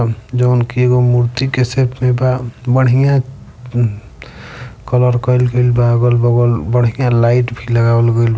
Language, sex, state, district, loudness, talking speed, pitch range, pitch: Bhojpuri, male, Uttar Pradesh, Varanasi, -14 LUFS, 135 wpm, 115-125 Hz, 120 Hz